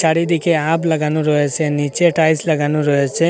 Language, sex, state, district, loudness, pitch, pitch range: Bengali, male, Assam, Hailakandi, -16 LUFS, 155 Hz, 150-165 Hz